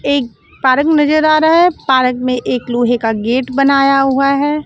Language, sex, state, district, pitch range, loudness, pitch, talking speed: Hindi, female, Chandigarh, Chandigarh, 250-295 Hz, -13 LUFS, 275 Hz, 195 wpm